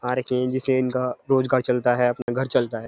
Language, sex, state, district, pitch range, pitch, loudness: Hindi, male, Uttarakhand, Uttarkashi, 125-130 Hz, 125 Hz, -22 LUFS